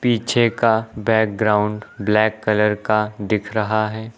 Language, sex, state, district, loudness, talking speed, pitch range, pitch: Hindi, male, Uttar Pradesh, Lucknow, -19 LUFS, 130 wpm, 105-110 Hz, 110 Hz